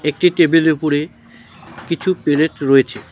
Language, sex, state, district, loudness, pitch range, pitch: Bengali, male, West Bengal, Cooch Behar, -16 LUFS, 145-170 Hz, 155 Hz